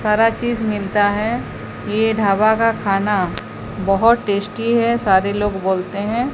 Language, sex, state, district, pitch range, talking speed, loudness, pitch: Hindi, female, Odisha, Sambalpur, 200-230 Hz, 140 wpm, -18 LUFS, 210 Hz